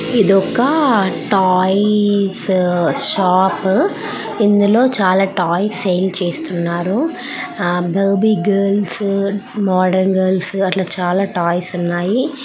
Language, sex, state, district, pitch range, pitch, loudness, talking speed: Telugu, female, Telangana, Karimnagar, 185-205 Hz, 195 Hz, -16 LUFS, 85 wpm